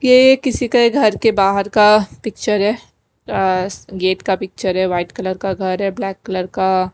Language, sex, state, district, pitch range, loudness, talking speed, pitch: Hindi, female, Himachal Pradesh, Shimla, 185-215 Hz, -16 LUFS, 180 wpm, 195 Hz